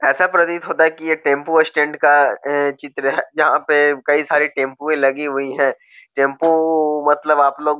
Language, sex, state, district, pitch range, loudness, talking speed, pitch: Hindi, male, Bihar, Gopalganj, 140-155 Hz, -16 LUFS, 185 wpm, 150 Hz